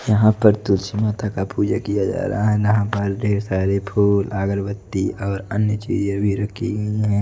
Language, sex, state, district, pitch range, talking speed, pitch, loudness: Hindi, male, Odisha, Nuapada, 100-105 Hz, 190 wpm, 100 Hz, -20 LUFS